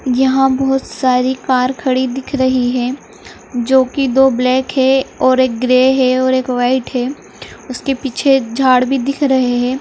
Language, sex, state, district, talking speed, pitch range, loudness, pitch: Hindi, female, Bihar, Saharsa, 175 wpm, 255-265 Hz, -14 LUFS, 260 Hz